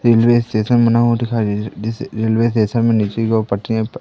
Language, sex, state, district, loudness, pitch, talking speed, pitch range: Hindi, male, Madhya Pradesh, Katni, -16 LUFS, 115 Hz, 255 wpm, 110-115 Hz